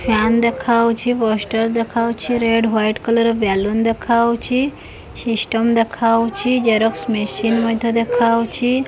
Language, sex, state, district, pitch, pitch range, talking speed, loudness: Odia, female, Odisha, Khordha, 230 Hz, 225-235 Hz, 100 wpm, -17 LUFS